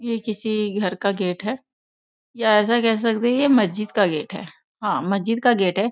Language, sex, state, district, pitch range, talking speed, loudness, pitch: Hindi, female, Bihar, Sitamarhi, 200-235 Hz, 215 wpm, -21 LUFS, 215 Hz